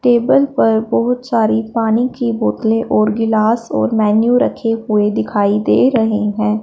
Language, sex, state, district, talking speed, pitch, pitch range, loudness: Hindi, female, Punjab, Fazilka, 155 wpm, 225 Hz, 215-235 Hz, -15 LUFS